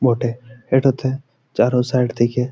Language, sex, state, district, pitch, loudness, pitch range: Bengali, male, West Bengal, Malda, 125 Hz, -19 LUFS, 120-135 Hz